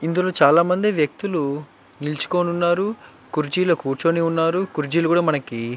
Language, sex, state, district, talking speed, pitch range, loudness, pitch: Telugu, male, Andhra Pradesh, Chittoor, 135 wpm, 150-175 Hz, -20 LUFS, 165 Hz